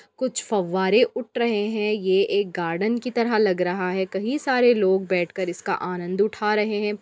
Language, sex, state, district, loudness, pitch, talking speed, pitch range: Hindi, female, Bihar, Lakhisarai, -23 LUFS, 205 Hz, 190 wpm, 185-230 Hz